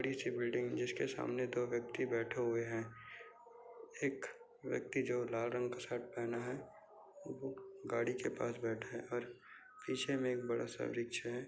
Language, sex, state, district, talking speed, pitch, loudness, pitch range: Hindi, male, Maharashtra, Aurangabad, 160 wpm, 120 Hz, -41 LUFS, 115-135 Hz